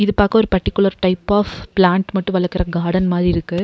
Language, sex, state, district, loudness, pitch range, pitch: Tamil, female, Tamil Nadu, Nilgiris, -17 LUFS, 180-200 Hz, 185 Hz